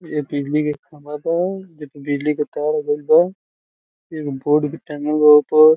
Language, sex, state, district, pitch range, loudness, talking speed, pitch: Bhojpuri, male, Bihar, Saran, 150-155 Hz, -18 LUFS, 200 wpm, 150 Hz